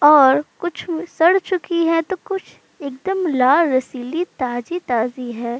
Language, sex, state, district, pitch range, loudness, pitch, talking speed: Hindi, female, Uttar Pradesh, Jalaun, 255-350 Hz, -19 LUFS, 320 Hz, 140 wpm